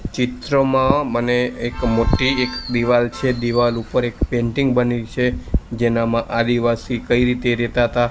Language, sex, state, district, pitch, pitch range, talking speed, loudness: Gujarati, male, Gujarat, Gandhinagar, 120 Hz, 120-125 Hz, 140 wpm, -19 LUFS